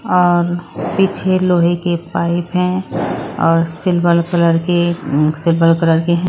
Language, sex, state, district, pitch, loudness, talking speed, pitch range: Hindi, female, Bihar, West Champaran, 175 Hz, -15 LUFS, 135 wpm, 165-180 Hz